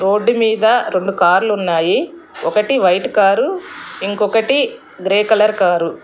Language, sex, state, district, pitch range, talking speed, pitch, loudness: Telugu, female, Telangana, Hyderabad, 185-225 Hz, 120 wpm, 210 Hz, -15 LUFS